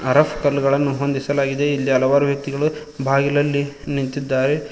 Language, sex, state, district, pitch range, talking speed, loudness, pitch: Kannada, male, Karnataka, Koppal, 135-145 Hz, 100 wpm, -19 LUFS, 140 Hz